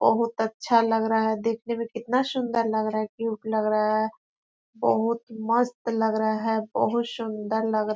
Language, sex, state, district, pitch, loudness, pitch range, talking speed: Hindi, female, Chhattisgarh, Korba, 225 Hz, -25 LUFS, 220-230 Hz, 210 wpm